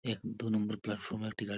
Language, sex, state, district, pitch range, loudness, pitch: Bengali, male, West Bengal, Purulia, 105-110 Hz, -37 LUFS, 110 Hz